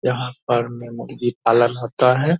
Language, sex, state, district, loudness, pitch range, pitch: Hindi, male, Bihar, Purnia, -19 LUFS, 120-125 Hz, 120 Hz